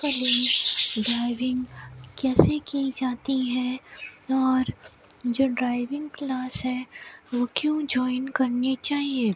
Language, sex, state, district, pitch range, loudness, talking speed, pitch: Hindi, female, Rajasthan, Bikaner, 245-270 Hz, -22 LUFS, 95 wpm, 255 Hz